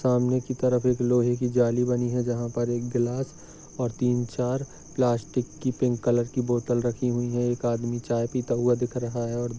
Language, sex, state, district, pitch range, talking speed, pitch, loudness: Hindi, male, Maharashtra, Sindhudurg, 120-125 Hz, 215 wpm, 120 Hz, -26 LUFS